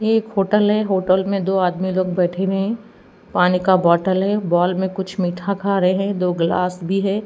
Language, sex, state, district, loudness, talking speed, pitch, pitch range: Hindi, female, Bihar, Katihar, -19 LUFS, 225 wpm, 190 Hz, 180-200 Hz